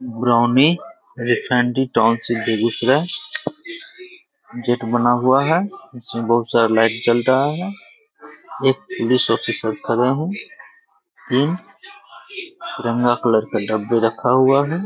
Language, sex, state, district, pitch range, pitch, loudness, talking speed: Hindi, male, Bihar, Begusarai, 120-195 Hz, 130 Hz, -18 LUFS, 105 wpm